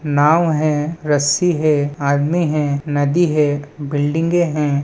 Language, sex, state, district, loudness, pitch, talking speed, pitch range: Hindi, female, Chhattisgarh, Balrampur, -17 LUFS, 150 Hz, 125 wpm, 145-160 Hz